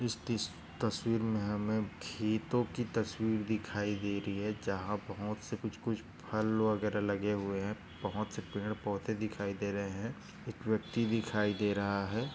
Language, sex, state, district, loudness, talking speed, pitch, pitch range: Hindi, male, Maharashtra, Nagpur, -36 LUFS, 165 wpm, 105 Hz, 100-110 Hz